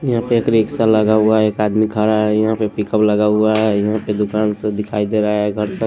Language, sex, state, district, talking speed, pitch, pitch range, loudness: Hindi, male, Punjab, Kapurthala, 265 wpm, 110 Hz, 105-110 Hz, -16 LUFS